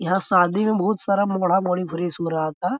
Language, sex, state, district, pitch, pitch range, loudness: Hindi, male, Bihar, Jahanabad, 185 Hz, 175-200 Hz, -21 LUFS